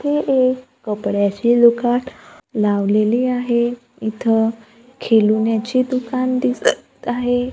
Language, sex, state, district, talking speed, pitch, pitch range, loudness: Marathi, female, Maharashtra, Gondia, 90 wpm, 240 Hz, 220-255 Hz, -18 LUFS